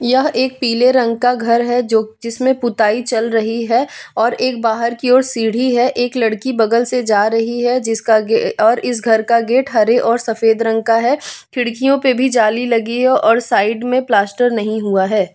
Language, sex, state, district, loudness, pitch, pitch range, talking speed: Hindi, female, Bihar, West Champaran, -15 LUFS, 235 Hz, 225-250 Hz, 200 wpm